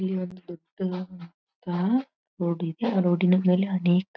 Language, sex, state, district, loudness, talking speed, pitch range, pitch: Kannada, female, Karnataka, Belgaum, -26 LUFS, 130 wpm, 175-190 Hz, 180 Hz